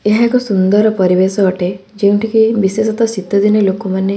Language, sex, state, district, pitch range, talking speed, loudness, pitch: Odia, female, Odisha, Khordha, 190-220 Hz, 130 wpm, -13 LUFS, 200 Hz